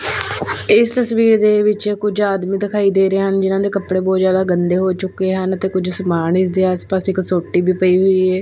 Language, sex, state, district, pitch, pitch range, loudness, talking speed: Punjabi, female, Punjab, Fazilka, 190 Hz, 185-200 Hz, -16 LUFS, 220 wpm